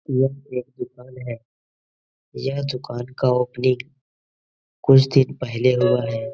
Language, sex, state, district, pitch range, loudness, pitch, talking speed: Hindi, male, Bihar, Jahanabad, 125-135 Hz, -21 LUFS, 130 Hz, 125 wpm